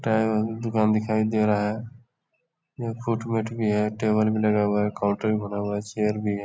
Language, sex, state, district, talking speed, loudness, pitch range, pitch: Hindi, male, Bihar, Darbhanga, 215 wpm, -25 LUFS, 105-115 Hz, 110 Hz